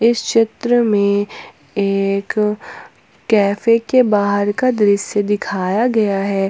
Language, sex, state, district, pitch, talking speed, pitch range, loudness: Hindi, female, Jharkhand, Ranchi, 205 Hz, 110 wpm, 200-230 Hz, -16 LUFS